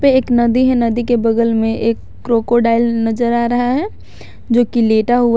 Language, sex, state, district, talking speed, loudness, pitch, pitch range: Hindi, female, Jharkhand, Garhwa, 190 wpm, -15 LUFS, 235 Hz, 230-245 Hz